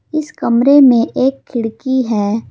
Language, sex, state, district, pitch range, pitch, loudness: Hindi, female, Jharkhand, Palamu, 230-275 Hz, 255 Hz, -13 LUFS